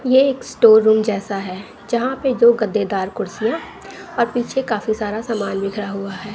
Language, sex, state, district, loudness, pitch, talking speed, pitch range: Hindi, female, Bihar, West Champaran, -18 LUFS, 220 Hz, 180 wpm, 200-245 Hz